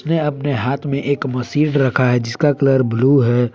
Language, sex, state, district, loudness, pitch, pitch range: Hindi, male, Jharkhand, Palamu, -17 LUFS, 135 Hz, 125-145 Hz